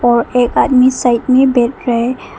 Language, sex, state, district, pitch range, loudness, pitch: Hindi, female, Arunachal Pradesh, Papum Pare, 240-255 Hz, -12 LUFS, 245 Hz